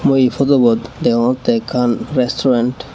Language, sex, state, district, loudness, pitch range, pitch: Chakma, male, Tripura, Unakoti, -15 LUFS, 120-135 Hz, 125 Hz